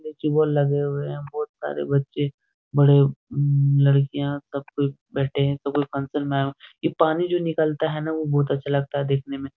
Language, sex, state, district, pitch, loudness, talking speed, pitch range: Hindi, male, Bihar, Jahanabad, 140 Hz, -23 LUFS, 195 wpm, 140-150 Hz